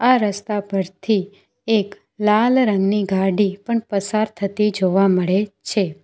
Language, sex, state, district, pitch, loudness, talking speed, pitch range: Gujarati, female, Gujarat, Valsad, 205 Hz, -19 LUFS, 130 wpm, 195-215 Hz